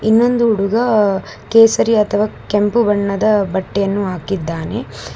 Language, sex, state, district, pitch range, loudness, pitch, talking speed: Kannada, female, Karnataka, Bangalore, 195-225 Hz, -15 LUFS, 205 Hz, 95 wpm